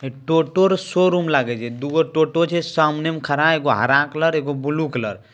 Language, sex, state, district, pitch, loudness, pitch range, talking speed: Maithili, male, Bihar, Bhagalpur, 155 Hz, -19 LUFS, 140-165 Hz, 215 wpm